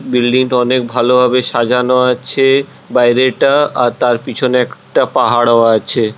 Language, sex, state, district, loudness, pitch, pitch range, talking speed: Bengali, male, West Bengal, Purulia, -12 LUFS, 125 Hz, 120-130 Hz, 135 wpm